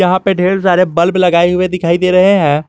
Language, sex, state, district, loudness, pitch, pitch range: Hindi, male, Jharkhand, Garhwa, -11 LUFS, 180 Hz, 170-185 Hz